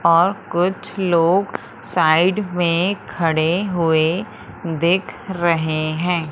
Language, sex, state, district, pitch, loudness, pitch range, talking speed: Hindi, female, Madhya Pradesh, Umaria, 170 Hz, -19 LUFS, 165-185 Hz, 95 wpm